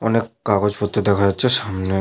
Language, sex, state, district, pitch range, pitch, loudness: Bengali, male, West Bengal, Malda, 100-115 Hz, 105 Hz, -19 LUFS